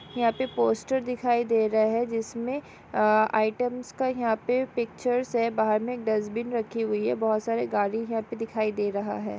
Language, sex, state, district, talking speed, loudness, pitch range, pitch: Hindi, female, Andhra Pradesh, Srikakulam, 180 wpm, -27 LUFS, 215-240 Hz, 225 Hz